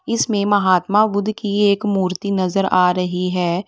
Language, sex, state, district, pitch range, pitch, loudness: Hindi, female, Uttar Pradesh, Lalitpur, 180-205 Hz, 195 Hz, -18 LUFS